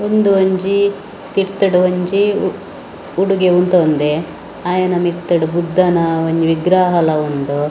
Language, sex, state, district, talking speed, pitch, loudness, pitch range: Tulu, female, Karnataka, Dakshina Kannada, 115 wpm, 180 Hz, -15 LUFS, 165-190 Hz